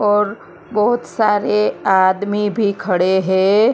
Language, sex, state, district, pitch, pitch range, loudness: Hindi, female, Maharashtra, Mumbai Suburban, 205 Hz, 190-210 Hz, -16 LUFS